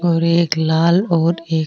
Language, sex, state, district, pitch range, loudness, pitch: Marwari, female, Rajasthan, Nagaur, 160-170 Hz, -16 LUFS, 165 Hz